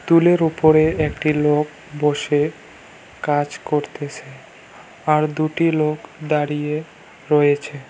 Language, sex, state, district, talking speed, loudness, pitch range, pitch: Bengali, male, West Bengal, Cooch Behar, 100 wpm, -19 LUFS, 145-155 Hz, 150 Hz